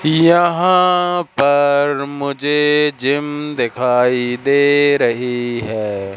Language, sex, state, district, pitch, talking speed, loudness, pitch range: Hindi, male, Madhya Pradesh, Katni, 145 Hz, 80 wpm, -15 LUFS, 125-150 Hz